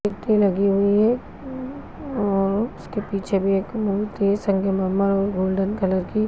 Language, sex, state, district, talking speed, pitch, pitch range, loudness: Hindi, female, Chhattisgarh, Raigarh, 125 wpm, 200 Hz, 195-215 Hz, -22 LUFS